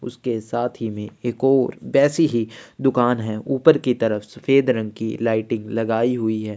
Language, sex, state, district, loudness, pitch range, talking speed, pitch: Hindi, male, Chhattisgarh, Sukma, -21 LUFS, 110-130 Hz, 185 wpm, 120 Hz